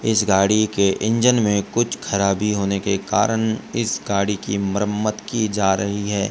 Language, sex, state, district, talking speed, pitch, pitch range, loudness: Hindi, male, Rajasthan, Bikaner, 170 wpm, 105 Hz, 100-110 Hz, -20 LUFS